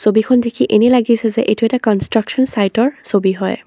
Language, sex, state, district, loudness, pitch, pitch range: Assamese, female, Assam, Sonitpur, -15 LUFS, 225 Hz, 210-240 Hz